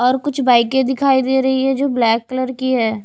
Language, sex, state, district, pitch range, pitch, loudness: Hindi, female, Odisha, Khordha, 245-265 Hz, 260 Hz, -16 LUFS